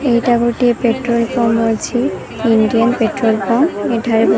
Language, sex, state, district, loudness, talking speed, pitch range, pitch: Odia, female, Odisha, Sambalpur, -15 LUFS, 135 wpm, 225-240 Hz, 235 Hz